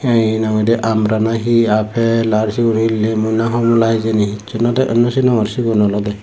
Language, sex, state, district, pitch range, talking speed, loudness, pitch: Chakma, male, Tripura, Dhalai, 110-115 Hz, 190 wpm, -15 LUFS, 115 Hz